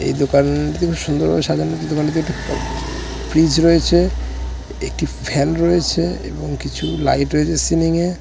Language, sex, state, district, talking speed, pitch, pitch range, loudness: Bengali, male, West Bengal, Jalpaiguri, 140 wpm, 155 Hz, 140-165 Hz, -18 LUFS